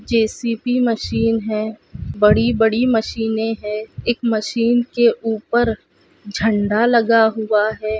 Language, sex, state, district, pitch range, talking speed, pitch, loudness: Hindi, female, Goa, North and South Goa, 215-235 Hz, 110 wpm, 225 Hz, -18 LUFS